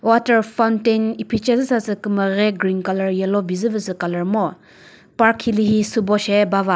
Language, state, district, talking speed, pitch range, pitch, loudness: Chakhesang, Nagaland, Dimapur, 160 wpm, 195-225 Hz, 210 Hz, -19 LUFS